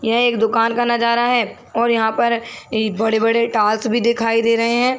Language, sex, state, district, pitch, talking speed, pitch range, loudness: Hindi, female, Chhattisgarh, Bilaspur, 230 Hz, 230 wpm, 225-235 Hz, -17 LUFS